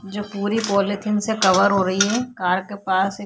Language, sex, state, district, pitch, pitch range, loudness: Hindi, female, Chhattisgarh, Korba, 200 Hz, 195-210 Hz, -20 LUFS